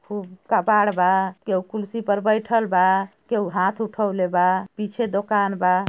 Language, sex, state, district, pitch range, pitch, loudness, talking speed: Bhojpuri, female, Uttar Pradesh, Ghazipur, 185-215 Hz, 200 Hz, -21 LUFS, 155 wpm